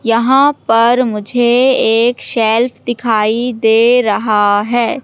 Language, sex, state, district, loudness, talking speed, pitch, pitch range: Hindi, female, Madhya Pradesh, Katni, -12 LUFS, 105 wpm, 235 Hz, 225-245 Hz